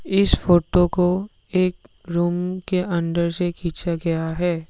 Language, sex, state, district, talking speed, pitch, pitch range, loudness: Hindi, male, Assam, Sonitpur, 140 wpm, 175 Hz, 170-180 Hz, -21 LUFS